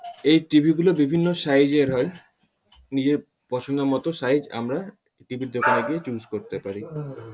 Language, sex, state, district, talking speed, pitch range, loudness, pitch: Bengali, male, West Bengal, Paschim Medinipur, 155 wpm, 125-160 Hz, -23 LUFS, 140 Hz